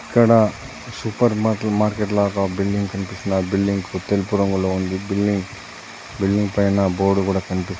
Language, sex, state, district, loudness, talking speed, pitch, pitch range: Telugu, male, Telangana, Adilabad, -20 LUFS, 130 wpm, 100 Hz, 95-105 Hz